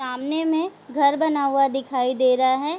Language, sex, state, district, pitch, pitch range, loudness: Hindi, female, Bihar, Vaishali, 275 Hz, 260-305 Hz, -21 LUFS